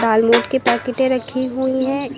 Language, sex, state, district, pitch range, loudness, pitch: Hindi, female, Uttar Pradesh, Lucknow, 235-265 Hz, -17 LUFS, 260 Hz